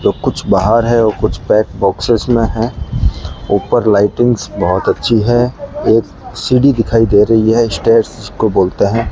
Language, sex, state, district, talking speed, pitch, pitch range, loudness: Hindi, male, Rajasthan, Bikaner, 165 wpm, 115 Hz, 105-120 Hz, -13 LUFS